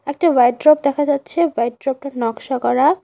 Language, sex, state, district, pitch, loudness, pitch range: Bengali, female, West Bengal, Cooch Behar, 280 Hz, -17 LUFS, 245-305 Hz